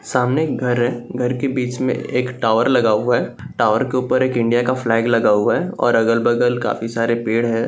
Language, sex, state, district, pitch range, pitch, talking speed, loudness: Hindi, male, Bihar, Saharsa, 115-125 Hz, 120 Hz, 225 wpm, -18 LUFS